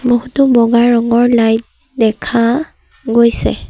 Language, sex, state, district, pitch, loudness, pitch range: Assamese, female, Assam, Sonitpur, 235 Hz, -12 LUFS, 230-250 Hz